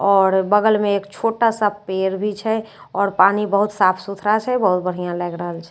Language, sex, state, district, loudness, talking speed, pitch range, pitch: Maithili, female, Bihar, Katihar, -19 LUFS, 210 wpm, 190-210 Hz, 200 Hz